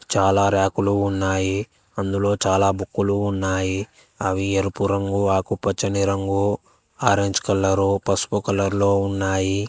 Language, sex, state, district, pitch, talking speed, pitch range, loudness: Telugu, male, Telangana, Hyderabad, 100 Hz, 110 wpm, 95-100 Hz, -21 LUFS